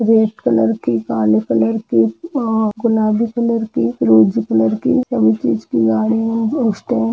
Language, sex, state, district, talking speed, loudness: Hindi, female, Jharkhand, Jamtara, 170 wpm, -16 LUFS